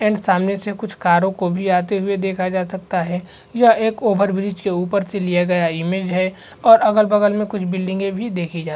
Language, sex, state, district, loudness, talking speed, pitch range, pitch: Hindi, male, Bihar, Vaishali, -18 LUFS, 210 wpm, 180-205 Hz, 190 Hz